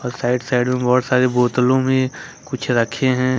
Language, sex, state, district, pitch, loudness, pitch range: Hindi, male, Jharkhand, Ranchi, 125 Hz, -18 LUFS, 125-130 Hz